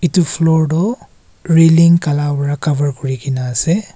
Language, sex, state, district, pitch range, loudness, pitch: Nagamese, male, Nagaland, Kohima, 145-170 Hz, -14 LUFS, 160 Hz